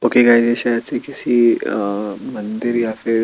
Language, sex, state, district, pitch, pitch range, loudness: Hindi, male, Chandigarh, Chandigarh, 115 Hz, 110-120 Hz, -17 LUFS